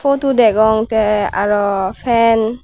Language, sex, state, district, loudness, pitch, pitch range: Chakma, female, Tripura, Unakoti, -14 LUFS, 220 Hz, 210-235 Hz